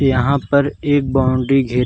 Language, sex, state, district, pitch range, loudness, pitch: Hindi, male, Uttar Pradesh, Varanasi, 130-140 Hz, -16 LUFS, 135 Hz